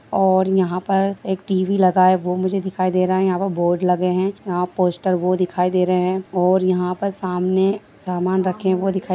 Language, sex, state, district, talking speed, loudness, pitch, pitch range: Hindi, female, Bihar, Purnia, 225 wpm, -19 LUFS, 185 Hz, 180-190 Hz